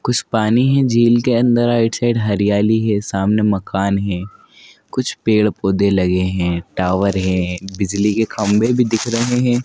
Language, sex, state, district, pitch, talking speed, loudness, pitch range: Hindi, male, Madhya Pradesh, Dhar, 105 Hz, 170 wpm, -16 LUFS, 95-120 Hz